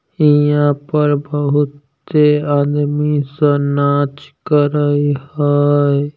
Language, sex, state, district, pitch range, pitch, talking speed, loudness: Maithili, male, Bihar, Samastipur, 145-150 Hz, 145 Hz, 95 wpm, -15 LUFS